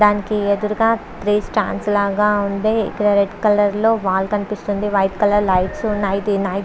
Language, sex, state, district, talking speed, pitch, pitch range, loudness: Telugu, female, Andhra Pradesh, Visakhapatnam, 135 wpm, 205 Hz, 200-210 Hz, -18 LUFS